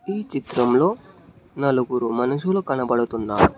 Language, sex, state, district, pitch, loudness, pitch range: Telugu, male, Telangana, Hyderabad, 125 Hz, -22 LUFS, 120-140 Hz